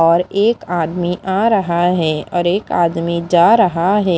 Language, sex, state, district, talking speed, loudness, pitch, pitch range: Hindi, female, Maharashtra, Mumbai Suburban, 170 wpm, -15 LUFS, 175 Hz, 170-190 Hz